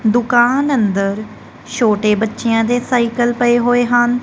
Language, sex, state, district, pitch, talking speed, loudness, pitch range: Punjabi, female, Punjab, Kapurthala, 240 Hz, 130 wpm, -15 LUFS, 220-245 Hz